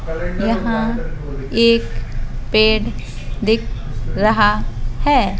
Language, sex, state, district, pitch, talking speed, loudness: Hindi, female, Madhya Pradesh, Bhopal, 120 Hz, 65 wpm, -18 LUFS